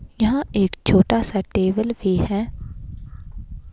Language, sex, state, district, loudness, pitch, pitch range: Hindi, female, Himachal Pradesh, Shimla, -20 LUFS, 195 Hz, 180-220 Hz